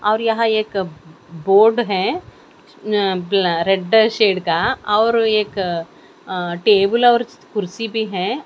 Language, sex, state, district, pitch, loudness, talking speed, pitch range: Hindi, female, Haryana, Jhajjar, 205 Hz, -17 LUFS, 130 wpm, 185-220 Hz